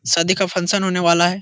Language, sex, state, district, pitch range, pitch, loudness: Hindi, male, Bihar, Jahanabad, 170-190 Hz, 180 Hz, -17 LUFS